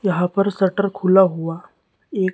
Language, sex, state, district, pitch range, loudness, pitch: Hindi, male, Maharashtra, Gondia, 180-195 Hz, -18 LUFS, 190 Hz